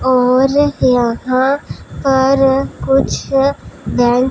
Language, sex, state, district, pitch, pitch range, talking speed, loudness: Hindi, male, Punjab, Pathankot, 265 Hz, 255-275 Hz, 85 wpm, -14 LUFS